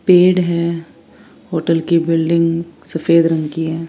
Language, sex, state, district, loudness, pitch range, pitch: Hindi, female, Chandigarh, Chandigarh, -16 LUFS, 165-170 Hz, 165 Hz